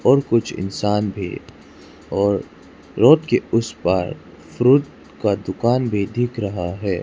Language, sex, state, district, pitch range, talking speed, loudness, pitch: Hindi, male, Arunachal Pradesh, Lower Dibang Valley, 100-120 Hz, 135 wpm, -20 LUFS, 105 Hz